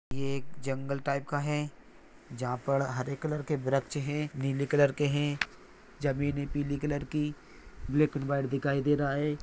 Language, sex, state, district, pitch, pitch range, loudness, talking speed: Hindi, male, Maharashtra, Nagpur, 140 Hz, 135-145 Hz, -31 LUFS, 170 wpm